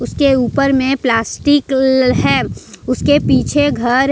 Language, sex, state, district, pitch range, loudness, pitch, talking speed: Hindi, female, Jharkhand, Ranchi, 255-280 Hz, -14 LUFS, 265 Hz, 145 wpm